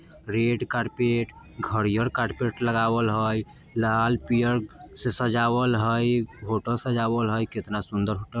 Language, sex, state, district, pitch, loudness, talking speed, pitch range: Bajjika, male, Bihar, Vaishali, 115 Hz, -25 LUFS, 120 wpm, 110-120 Hz